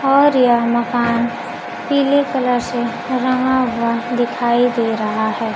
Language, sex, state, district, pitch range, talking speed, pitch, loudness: Hindi, female, Bihar, Kaimur, 235-255 Hz, 130 wpm, 240 Hz, -17 LUFS